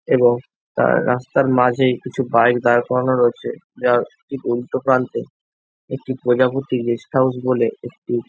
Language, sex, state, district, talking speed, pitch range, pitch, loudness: Bengali, male, West Bengal, Jhargram, 135 wpm, 120-130 Hz, 125 Hz, -18 LUFS